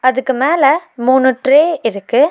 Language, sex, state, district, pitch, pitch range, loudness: Tamil, female, Tamil Nadu, Nilgiris, 265 Hz, 255-290 Hz, -13 LUFS